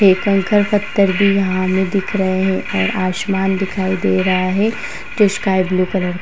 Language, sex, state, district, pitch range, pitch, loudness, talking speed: Hindi, female, Uttar Pradesh, Varanasi, 185-200 Hz, 190 Hz, -16 LUFS, 205 wpm